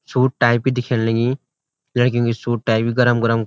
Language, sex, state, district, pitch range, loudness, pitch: Garhwali, male, Uttarakhand, Uttarkashi, 115-125 Hz, -18 LUFS, 120 Hz